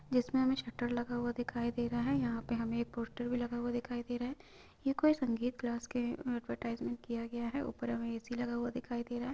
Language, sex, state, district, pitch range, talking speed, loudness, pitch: Hindi, female, Chhattisgarh, Raigarh, 235-250 Hz, 250 wpm, -37 LUFS, 240 Hz